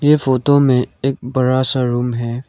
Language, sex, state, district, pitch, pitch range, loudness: Hindi, male, Arunachal Pradesh, Lower Dibang Valley, 130 Hz, 125-135 Hz, -16 LUFS